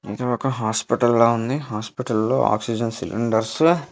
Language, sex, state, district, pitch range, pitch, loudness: Telugu, male, Andhra Pradesh, Visakhapatnam, 110-130 Hz, 115 Hz, -21 LUFS